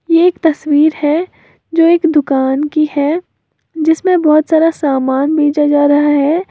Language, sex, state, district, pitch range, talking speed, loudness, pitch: Hindi, female, Uttar Pradesh, Lalitpur, 290-330 Hz, 155 wpm, -12 LUFS, 305 Hz